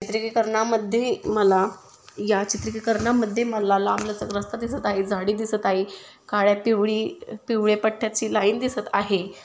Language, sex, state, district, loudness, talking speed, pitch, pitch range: Marathi, female, Maharashtra, Solapur, -23 LUFS, 135 wpm, 215 Hz, 205-225 Hz